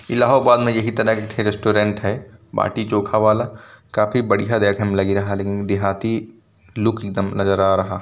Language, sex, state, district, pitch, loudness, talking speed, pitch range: Hindi, male, Uttar Pradesh, Varanasi, 105 Hz, -19 LUFS, 200 wpm, 100-110 Hz